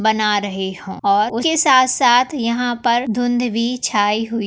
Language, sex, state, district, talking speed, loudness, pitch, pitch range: Hindi, female, Maharashtra, Nagpur, 175 wpm, -17 LUFS, 235 Hz, 210-245 Hz